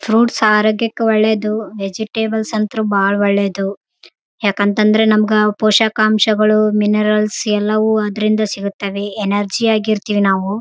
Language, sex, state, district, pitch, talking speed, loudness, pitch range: Kannada, female, Karnataka, Raichur, 215 Hz, 60 wpm, -15 LUFS, 205-220 Hz